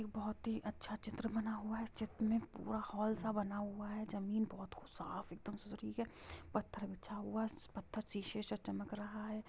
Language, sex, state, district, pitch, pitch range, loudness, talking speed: Hindi, female, Bihar, Sitamarhi, 215 Hz, 205-220 Hz, -44 LUFS, 210 wpm